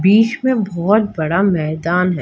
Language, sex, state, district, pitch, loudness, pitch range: Hindi, female, Maharashtra, Mumbai Suburban, 185 Hz, -16 LUFS, 170-215 Hz